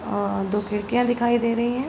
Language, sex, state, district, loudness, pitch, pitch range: Hindi, female, Uttar Pradesh, Hamirpur, -23 LUFS, 230 Hz, 205-240 Hz